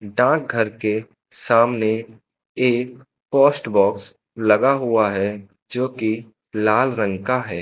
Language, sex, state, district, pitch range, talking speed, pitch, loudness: Hindi, male, Uttar Pradesh, Lucknow, 105-125 Hz, 120 wpm, 110 Hz, -20 LUFS